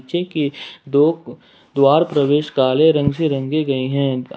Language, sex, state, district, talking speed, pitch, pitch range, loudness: Hindi, male, Jharkhand, Ranchi, 125 wpm, 145 Hz, 135-155 Hz, -17 LUFS